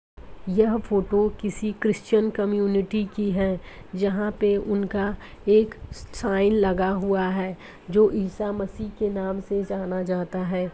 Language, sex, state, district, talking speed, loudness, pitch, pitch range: Bhojpuri, male, Uttar Pradesh, Gorakhpur, 140 wpm, -24 LUFS, 200 Hz, 190-210 Hz